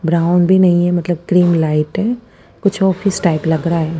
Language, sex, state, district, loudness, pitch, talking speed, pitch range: Hindi, female, Punjab, Fazilka, -15 LUFS, 175 Hz, 210 wpm, 165-190 Hz